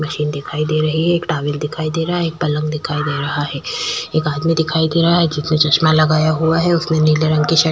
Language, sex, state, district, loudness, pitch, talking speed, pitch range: Hindi, female, Chhattisgarh, Kabirdham, -16 LUFS, 155 Hz, 255 wpm, 150-160 Hz